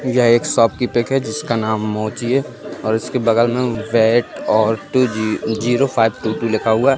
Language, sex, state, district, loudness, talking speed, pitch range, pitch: Hindi, male, Uttar Pradesh, Jalaun, -17 LUFS, 155 wpm, 110-125 Hz, 115 Hz